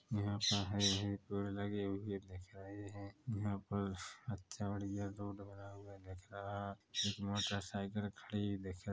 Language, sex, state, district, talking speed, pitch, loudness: Hindi, male, Chhattisgarh, Korba, 170 wpm, 100 Hz, -41 LUFS